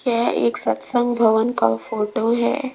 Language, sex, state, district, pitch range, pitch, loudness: Hindi, female, Rajasthan, Jaipur, 220-240 Hz, 235 Hz, -20 LUFS